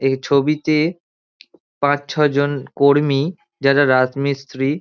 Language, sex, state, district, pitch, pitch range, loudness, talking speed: Bengali, male, West Bengal, Dakshin Dinajpur, 140 Hz, 140-150 Hz, -18 LUFS, 85 wpm